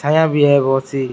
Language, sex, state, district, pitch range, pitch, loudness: Rajasthani, male, Rajasthan, Churu, 135-150 Hz, 140 Hz, -15 LUFS